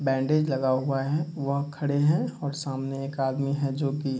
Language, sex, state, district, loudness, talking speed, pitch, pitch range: Hindi, male, Bihar, Kishanganj, -27 LUFS, 215 wpm, 140 Hz, 135-145 Hz